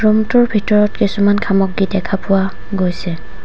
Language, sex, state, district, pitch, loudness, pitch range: Assamese, female, Assam, Sonitpur, 200 Hz, -15 LUFS, 195-210 Hz